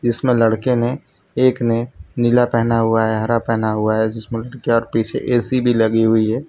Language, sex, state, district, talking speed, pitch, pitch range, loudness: Hindi, male, Gujarat, Valsad, 175 wpm, 115 Hz, 110-120 Hz, -17 LUFS